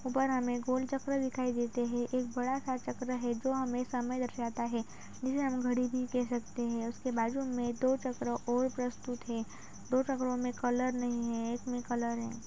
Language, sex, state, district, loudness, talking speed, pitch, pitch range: Hindi, female, Uttar Pradesh, Budaun, -34 LUFS, 200 wpm, 250 Hz, 240-255 Hz